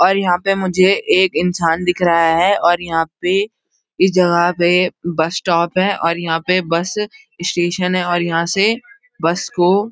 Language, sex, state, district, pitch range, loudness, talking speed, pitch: Hindi, male, Uttarakhand, Uttarkashi, 170-195 Hz, -16 LUFS, 180 wpm, 180 Hz